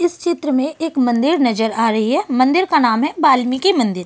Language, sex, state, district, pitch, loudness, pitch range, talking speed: Hindi, female, Delhi, New Delhi, 270 Hz, -16 LUFS, 240-325 Hz, 220 wpm